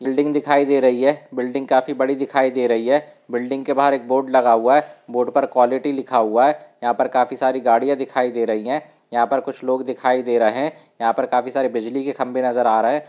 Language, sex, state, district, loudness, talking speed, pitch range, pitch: Hindi, male, Andhra Pradesh, Guntur, -19 LUFS, 245 wpm, 125-140 Hz, 130 Hz